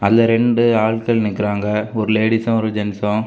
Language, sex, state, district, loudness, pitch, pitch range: Tamil, male, Tamil Nadu, Kanyakumari, -17 LUFS, 110 Hz, 105-115 Hz